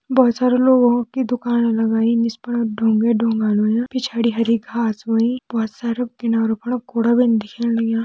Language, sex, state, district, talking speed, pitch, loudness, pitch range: Kumaoni, female, Uttarakhand, Tehri Garhwal, 165 wpm, 230 Hz, -19 LUFS, 225-245 Hz